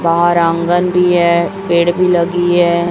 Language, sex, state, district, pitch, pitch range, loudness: Hindi, female, Chhattisgarh, Raipur, 175 Hz, 170-175 Hz, -12 LUFS